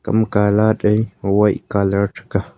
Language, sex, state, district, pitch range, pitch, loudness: Wancho, male, Arunachal Pradesh, Longding, 100-110 Hz, 105 Hz, -17 LUFS